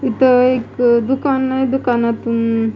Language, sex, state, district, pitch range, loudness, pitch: Marathi, female, Maharashtra, Mumbai Suburban, 235-265 Hz, -15 LUFS, 250 Hz